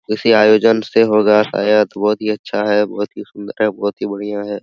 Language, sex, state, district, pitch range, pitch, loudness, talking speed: Hindi, male, Bihar, Araria, 105-110 Hz, 105 Hz, -15 LUFS, 205 wpm